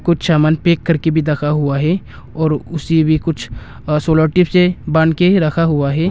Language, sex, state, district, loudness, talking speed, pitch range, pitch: Hindi, male, Arunachal Pradesh, Longding, -15 LUFS, 205 wpm, 150-170 Hz, 160 Hz